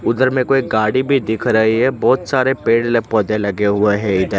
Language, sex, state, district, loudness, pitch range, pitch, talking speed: Hindi, male, Gujarat, Gandhinagar, -16 LUFS, 105-130 Hz, 115 Hz, 220 wpm